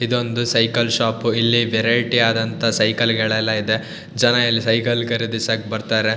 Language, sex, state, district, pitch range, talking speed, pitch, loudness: Kannada, male, Karnataka, Shimoga, 110-120 Hz, 145 wpm, 115 Hz, -18 LUFS